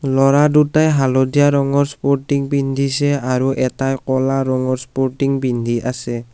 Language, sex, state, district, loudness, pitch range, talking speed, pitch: Assamese, male, Assam, Kamrup Metropolitan, -17 LUFS, 130-140 Hz, 125 wpm, 135 Hz